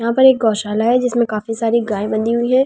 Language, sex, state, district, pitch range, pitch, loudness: Hindi, female, Delhi, New Delhi, 215-245 Hz, 230 Hz, -16 LUFS